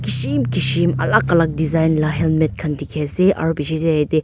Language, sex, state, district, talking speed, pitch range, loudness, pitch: Nagamese, female, Nagaland, Dimapur, 185 wpm, 150-160 Hz, -18 LUFS, 155 Hz